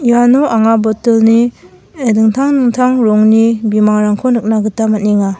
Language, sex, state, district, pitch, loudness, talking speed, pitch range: Garo, female, Meghalaya, West Garo Hills, 225 Hz, -11 LUFS, 120 wpm, 215-240 Hz